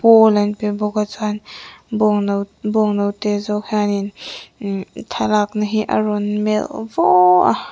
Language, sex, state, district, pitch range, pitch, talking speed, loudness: Mizo, female, Mizoram, Aizawl, 205-215 Hz, 210 Hz, 140 wpm, -18 LUFS